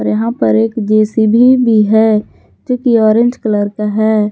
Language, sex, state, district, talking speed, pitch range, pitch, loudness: Hindi, female, Jharkhand, Garhwa, 150 wpm, 210-225 Hz, 215 Hz, -12 LUFS